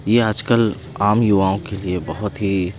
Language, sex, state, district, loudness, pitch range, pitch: Hindi, male, Himachal Pradesh, Shimla, -19 LUFS, 95-115 Hz, 105 Hz